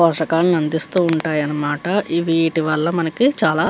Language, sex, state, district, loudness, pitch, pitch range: Telugu, female, Andhra Pradesh, Chittoor, -18 LUFS, 165 Hz, 155-170 Hz